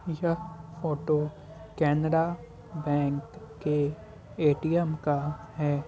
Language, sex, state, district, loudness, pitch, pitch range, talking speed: Hindi, male, Bihar, Muzaffarpur, -29 LUFS, 155 Hz, 145-160 Hz, 80 wpm